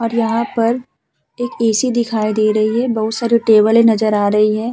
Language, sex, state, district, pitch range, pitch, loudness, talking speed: Hindi, female, Uttar Pradesh, Hamirpur, 215-235 Hz, 225 Hz, -15 LUFS, 205 wpm